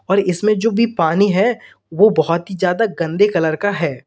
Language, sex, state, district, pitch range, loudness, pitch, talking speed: Hindi, male, Uttar Pradesh, Lalitpur, 165-210 Hz, -16 LUFS, 190 Hz, 205 wpm